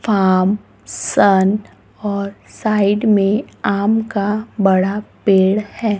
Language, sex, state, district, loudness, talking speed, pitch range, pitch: Hindi, female, Maharashtra, Gondia, -16 LUFS, 100 wpm, 195-215 Hz, 200 Hz